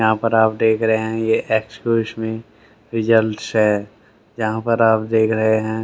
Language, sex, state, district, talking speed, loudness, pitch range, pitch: Hindi, male, Haryana, Rohtak, 175 wpm, -18 LUFS, 110-115 Hz, 110 Hz